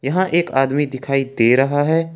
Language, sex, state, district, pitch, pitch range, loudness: Hindi, male, Jharkhand, Ranchi, 140 Hz, 135-165 Hz, -17 LUFS